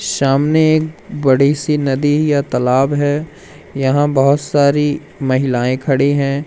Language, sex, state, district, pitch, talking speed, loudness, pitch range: Hindi, male, Madhya Pradesh, Umaria, 145 Hz, 130 wpm, -15 LUFS, 135-150 Hz